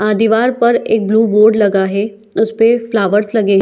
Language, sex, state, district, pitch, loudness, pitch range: Hindi, female, Chhattisgarh, Bilaspur, 220 Hz, -13 LUFS, 205-225 Hz